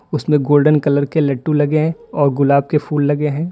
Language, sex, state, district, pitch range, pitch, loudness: Hindi, male, Uttar Pradesh, Lalitpur, 145-155 Hz, 150 Hz, -16 LUFS